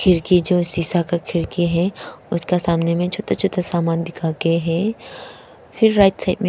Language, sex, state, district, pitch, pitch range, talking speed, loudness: Hindi, female, Arunachal Pradesh, Papum Pare, 175 Hz, 170-190 Hz, 165 wpm, -19 LUFS